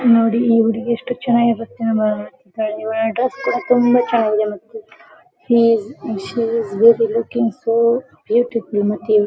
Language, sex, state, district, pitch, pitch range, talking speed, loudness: Kannada, female, Karnataka, Dharwad, 230 Hz, 220-240 Hz, 160 wpm, -17 LUFS